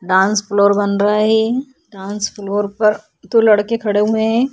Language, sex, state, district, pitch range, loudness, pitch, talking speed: Hindi, female, Uttar Pradesh, Budaun, 200-220 Hz, -16 LUFS, 210 Hz, 170 wpm